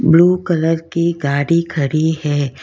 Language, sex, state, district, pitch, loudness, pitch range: Hindi, female, Karnataka, Bangalore, 160 Hz, -16 LUFS, 145-170 Hz